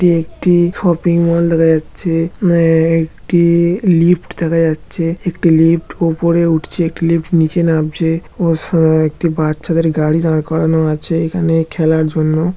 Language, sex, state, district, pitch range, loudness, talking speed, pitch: Bengali, male, West Bengal, Dakshin Dinajpur, 160-170 Hz, -14 LUFS, 140 wpm, 165 Hz